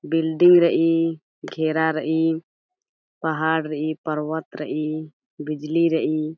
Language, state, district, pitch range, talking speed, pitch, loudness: Kurukh, Chhattisgarh, Jashpur, 155-165 Hz, 95 wpm, 160 Hz, -22 LUFS